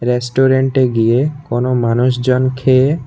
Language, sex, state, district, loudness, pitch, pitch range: Bengali, male, Tripura, West Tripura, -14 LUFS, 130 Hz, 125-130 Hz